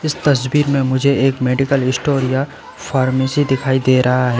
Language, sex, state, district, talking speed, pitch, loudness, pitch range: Hindi, male, West Bengal, Alipurduar, 175 wpm, 135 Hz, -16 LUFS, 130-140 Hz